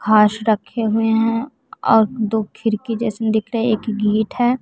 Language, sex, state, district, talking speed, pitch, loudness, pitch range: Hindi, female, Bihar, West Champaran, 180 wpm, 220 Hz, -18 LUFS, 215-230 Hz